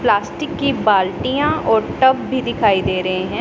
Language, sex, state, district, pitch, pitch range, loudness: Hindi, male, Punjab, Pathankot, 220 Hz, 185-260 Hz, -17 LUFS